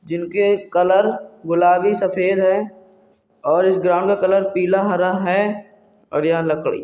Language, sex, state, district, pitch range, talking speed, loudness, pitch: Hindi, male, Jharkhand, Jamtara, 180-200 Hz, 140 wpm, -18 LUFS, 190 Hz